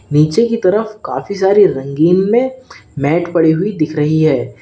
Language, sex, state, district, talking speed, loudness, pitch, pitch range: Hindi, male, Uttar Pradesh, Lalitpur, 170 wpm, -14 LUFS, 170 Hz, 155-205 Hz